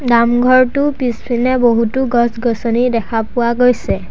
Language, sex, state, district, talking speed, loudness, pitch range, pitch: Assamese, male, Assam, Sonitpur, 100 wpm, -14 LUFS, 235-255 Hz, 240 Hz